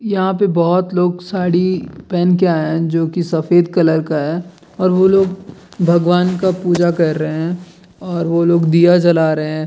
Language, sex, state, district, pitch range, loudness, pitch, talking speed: Hindi, male, Bihar, Jamui, 165-180 Hz, -15 LUFS, 175 Hz, 190 wpm